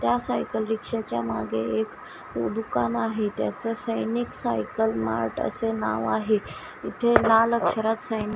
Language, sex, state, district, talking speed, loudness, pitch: Marathi, female, Maharashtra, Washim, 130 wpm, -26 LUFS, 205 Hz